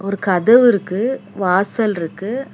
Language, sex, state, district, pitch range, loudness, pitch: Tamil, female, Karnataka, Bangalore, 190-235 Hz, -16 LUFS, 200 Hz